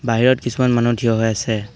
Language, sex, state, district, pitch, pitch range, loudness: Assamese, male, Assam, Hailakandi, 120 Hz, 115-120 Hz, -17 LUFS